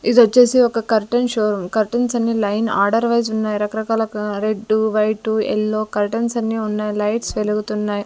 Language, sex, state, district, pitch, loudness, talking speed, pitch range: Telugu, female, Andhra Pradesh, Sri Satya Sai, 220 Hz, -18 LUFS, 140 wpm, 210-230 Hz